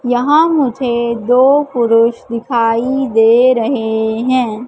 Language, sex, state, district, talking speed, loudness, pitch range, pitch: Hindi, female, Madhya Pradesh, Katni, 100 wpm, -13 LUFS, 230-260 Hz, 240 Hz